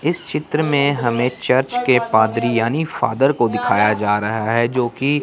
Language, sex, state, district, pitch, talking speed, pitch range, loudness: Hindi, male, Chandigarh, Chandigarh, 125 Hz, 170 wpm, 115-140 Hz, -18 LUFS